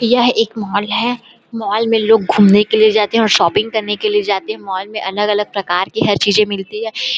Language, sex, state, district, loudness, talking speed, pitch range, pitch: Hindi, female, Chhattisgarh, Bilaspur, -14 LUFS, 250 wpm, 205-225 Hz, 215 Hz